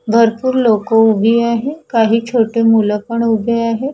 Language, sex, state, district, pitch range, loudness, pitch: Marathi, female, Maharashtra, Washim, 225-235 Hz, -14 LUFS, 230 Hz